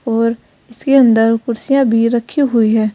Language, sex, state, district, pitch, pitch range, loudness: Hindi, female, Uttar Pradesh, Saharanpur, 230 Hz, 225-245 Hz, -13 LUFS